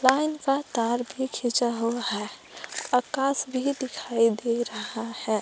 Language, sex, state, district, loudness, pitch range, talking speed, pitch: Hindi, female, Jharkhand, Palamu, -27 LUFS, 230-265 Hz, 145 wpm, 245 Hz